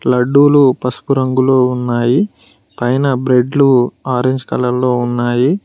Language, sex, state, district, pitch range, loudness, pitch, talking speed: Telugu, male, Telangana, Mahabubabad, 120-130 Hz, -13 LUFS, 125 Hz, 105 wpm